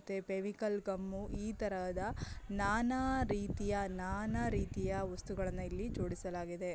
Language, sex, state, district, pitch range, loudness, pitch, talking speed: Kannada, female, Karnataka, Belgaum, 190-210 Hz, -39 LUFS, 200 Hz, 100 wpm